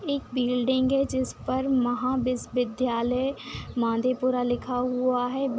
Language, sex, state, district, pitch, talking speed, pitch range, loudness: Hindi, female, Bihar, Madhepura, 255 Hz, 130 wpm, 245-260 Hz, -26 LUFS